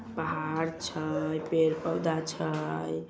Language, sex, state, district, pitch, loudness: Magahi, male, Bihar, Samastipur, 155 Hz, -31 LUFS